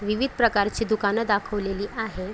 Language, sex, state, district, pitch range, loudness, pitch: Marathi, female, Maharashtra, Chandrapur, 200-225 Hz, -24 LUFS, 210 Hz